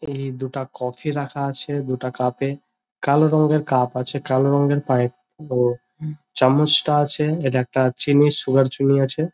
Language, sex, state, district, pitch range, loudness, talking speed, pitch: Bengali, male, West Bengal, Jhargram, 130-145 Hz, -20 LUFS, 140 wpm, 140 Hz